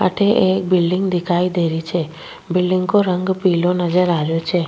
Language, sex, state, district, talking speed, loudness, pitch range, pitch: Rajasthani, female, Rajasthan, Nagaur, 190 wpm, -17 LUFS, 175-185 Hz, 180 Hz